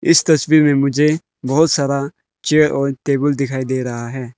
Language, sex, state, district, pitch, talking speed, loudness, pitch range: Hindi, male, Arunachal Pradesh, Lower Dibang Valley, 140 Hz, 180 wpm, -16 LUFS, 135-155 Hz